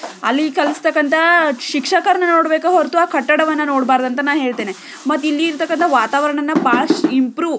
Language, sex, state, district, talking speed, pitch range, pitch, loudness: Kannada, female, Karnataka, Belgaum, 135 wpm, 285-330 Hz, 305 Hz, -15 LUFS